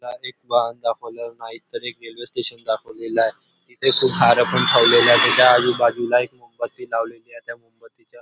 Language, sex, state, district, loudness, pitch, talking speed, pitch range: Marathi, male, Maharashtra, Nagpur, -17 LUFS, 120 Hz, 140 wpm, 115-125 Hz